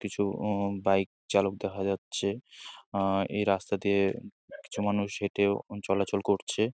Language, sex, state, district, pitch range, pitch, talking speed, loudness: Bengali, male, West Bengal, Jalpaiguri, 95-100 Hz, 100 Hz, 135 wpm, -30 LUFS